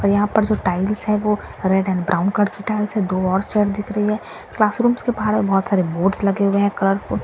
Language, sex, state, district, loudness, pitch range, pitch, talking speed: Hindi, female, Bihar, Katihar, -19 LUFS, 195-215 Hz, 205 Hz, 240 wpm